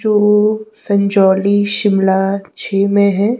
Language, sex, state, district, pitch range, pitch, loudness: Hindi, female, Himachal Pradesh, Shimla, 195-210 Hz, 200 Hz, -14 LUFS